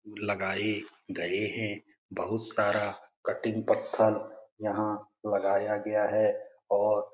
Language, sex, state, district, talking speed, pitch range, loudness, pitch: Hindi, male, Bihar, Jamui, 110 wpm, 105-110 Hz, -30 LUFS, 105 Hz